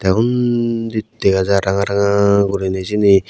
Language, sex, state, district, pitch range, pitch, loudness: Chakma, male, Tripura, West Tripura, 95-110 Hz, 100 Hz, -16 LUFS